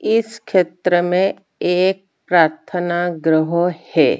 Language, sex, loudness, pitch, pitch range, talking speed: Hindi, female, -18 LUFS, 180 Hz, 170-190 Hz, 115 wpm